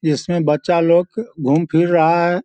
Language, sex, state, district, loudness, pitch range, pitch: Hindi, male, Bihar, Sitamarhi, -16 LUFS, 160-175 Hz, 170 Hz